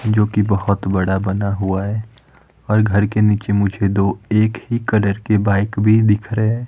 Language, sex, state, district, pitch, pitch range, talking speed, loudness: Hindi, male, Himachal Pradesh, Shimla, 105 Hz, 100-110 Hz, 195 wpm, -17 LUFS